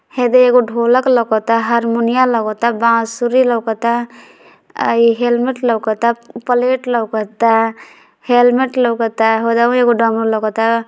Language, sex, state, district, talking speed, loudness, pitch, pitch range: Hindi, female, Bihar, Gopalganj, 170 wpm, -14 LUFS, 235 Hz, 225-245 Hz